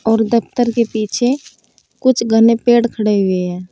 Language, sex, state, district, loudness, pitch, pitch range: Hindi, female, Uttar Pradesh, Saharanpur, -15 LUFS, 230 Hz, 215-240 Hz